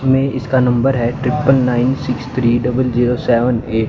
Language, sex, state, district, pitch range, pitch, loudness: Hindi, male, Haryana, Charkhi Dadri, 120-130 Hz, 125 Hz, -15 LUFS